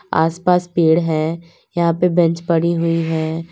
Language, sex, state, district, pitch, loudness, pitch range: Hindi, female, Uttar Pradesh, Lalitpur, 165 Hz, -17 LUFS, 165-170 Hz